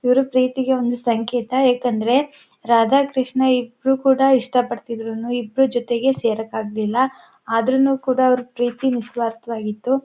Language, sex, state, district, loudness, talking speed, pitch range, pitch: Kannada, female, Karnataka, Chamarajanagar, -19 LUFS, 115 wpm, 235-265 Hz, 250 Hz